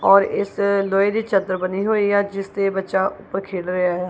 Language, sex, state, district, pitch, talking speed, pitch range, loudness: Punjabi, female, Punjab, Kapurthala, 195 Hz, 220 wpm, 190-200 Hz, -20 LUFS